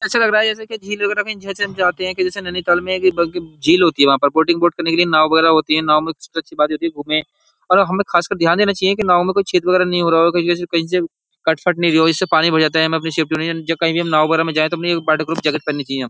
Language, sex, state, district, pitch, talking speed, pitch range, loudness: Hindi, male, Uttar Pradesh, Jyotiba Phule Nagar, 170 Hz, 330 wpm, 160-185 Hz, -16 LUFS